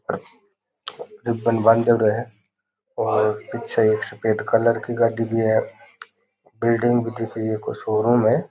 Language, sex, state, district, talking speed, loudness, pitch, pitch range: Rajasthani, male, Rajasthan, Nagaur, 135 wpm, -21 LUFS, 115 Hz, 110-115 Hz